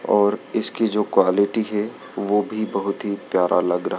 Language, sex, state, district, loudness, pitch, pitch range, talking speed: Hindi, male, Madhya Pradesh, Dhar, -21 LUFS, 105 Hz, 100-110 Hz, 165 wpm